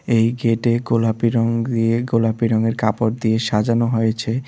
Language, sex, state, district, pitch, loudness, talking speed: Bengali, male, Tripura, West Tripura, 115 Hz, -19 LUFS, 145 wpm